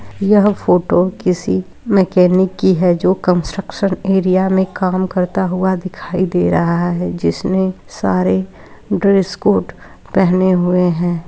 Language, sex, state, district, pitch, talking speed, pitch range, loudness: Hindi, female, Uttar Pradesh, Muzaffarnagar, 185 Hz, 115 wpm, 175-190 Hz, -15 LUFS